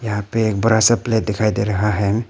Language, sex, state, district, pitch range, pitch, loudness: Hindi, male, Arunachal Pradesh, Papum Pare, 105-115 Hz, 110 Hz, -18 LUFS